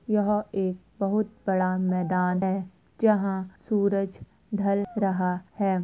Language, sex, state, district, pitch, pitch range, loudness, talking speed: Hindi, female, Uttar Pradesh, Jyotiba Phule Nagar, 195 Hz, 185-205 Hz, -27 LUFS, 115 wpm